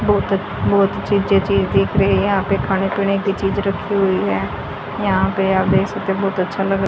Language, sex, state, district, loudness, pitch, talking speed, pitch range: Hindi, female, Haryana, Rohtak, -18 LUFS, 195 Hz, 235 wpm, 190-200 Hz